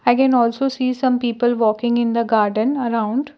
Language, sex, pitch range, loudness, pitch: English, female, 230-260 Hz, -18 LUFS, 240 Hz